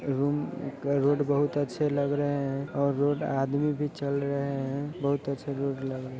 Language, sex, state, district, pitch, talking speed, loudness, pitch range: Hindi, male, Bihar, Sitamarhi, 140 Hz, 175 wpm, -29 LUFS, 140-145 Hz